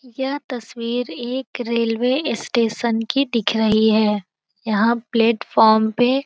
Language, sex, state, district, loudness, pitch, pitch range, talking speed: Hindi, female, Bihar, Saran, -19 LUFS, 235 Hz, 220-250 Hz, 145 wpm